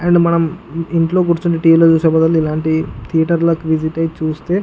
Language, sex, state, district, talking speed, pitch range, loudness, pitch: Telugu, male, Andhra Pradesh, Guntur, 170 wpm, 160-170 Hz, -15 LUFS, 165 Hz